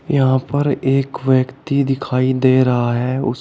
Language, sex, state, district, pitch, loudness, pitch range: Hindi, male, Uttar Pradesh, Shamli, 130 Hz, -17 LUFS, 130-135 Hz